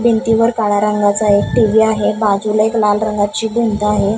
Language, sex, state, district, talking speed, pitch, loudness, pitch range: Marathi, female, Maharashtra, Gondia, 170 wpm, 215 Hz, -14 LUFS, 205-220 Hz